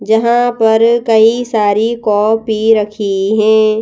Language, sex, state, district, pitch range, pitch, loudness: Hindi, female, Madhya Pradesh, Bhopal, 215-230 Hz, 220 Hz, -12 LUFS